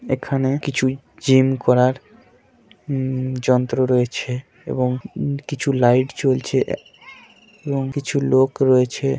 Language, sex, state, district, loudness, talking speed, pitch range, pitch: Bengali, male, West Bengal, Purulia, -20 LUFS, 105 wpm, 125-140 Hz, 130 Hz